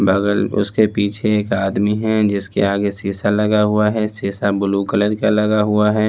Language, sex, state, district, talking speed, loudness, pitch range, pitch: Hindi, male, Chhattisgarh, Raipur, 185 wpm, -17 LUFS, 100-105 Hz, 105 Hz